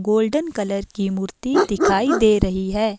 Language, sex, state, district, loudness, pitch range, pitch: Hindi, female, Himachal Pradesh, Shimla, -20 LUFS, 195-220 Hz, 210 Hz